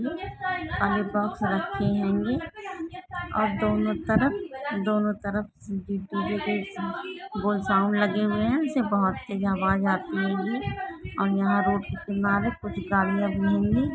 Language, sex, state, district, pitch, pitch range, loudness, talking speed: Hindi, female, Chhattisgarh, Rajnandgaon, 210 Hz, 200-255 Hz, -26 LUFS, 120 wpm